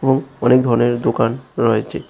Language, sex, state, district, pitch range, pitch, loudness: Bengali, male, Tripura, West Tripura, 120-130 Hz, 125 Hz, -17 LUFS